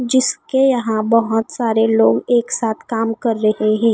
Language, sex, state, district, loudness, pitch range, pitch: Hindi, female, Odisha, Khordha, -17 LUFS, 220-240 Hz, 225 Hz